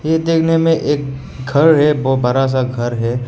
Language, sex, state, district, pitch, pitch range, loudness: Hindi, male, Meghalaya, West Garo Hills, 135 Hz, 130-160 Hz, -15 LUFS